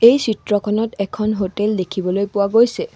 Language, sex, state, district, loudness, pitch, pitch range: Assamese, female, Assam, Sonitpur, -18 LUFS, 210 Hz, 200-225 Hz